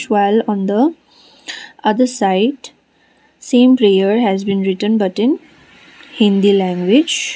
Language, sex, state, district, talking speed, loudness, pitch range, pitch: English, female, Sikkim, Gangtok, 105 wpm, -14 LUFS, 200-255 Hz, 215 Hz